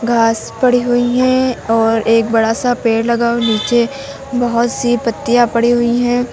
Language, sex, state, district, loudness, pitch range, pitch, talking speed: Hindi, female, Uttar Pradesh, Lucknow, -14 LUFS, 230-245 Hz, 240 Hz, 180 wpm